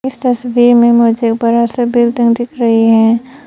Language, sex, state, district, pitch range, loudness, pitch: Hindi, female, Arunachal Pradesh, Papum Pare, 230-245 Hz, -11 LUFS, 235 Hz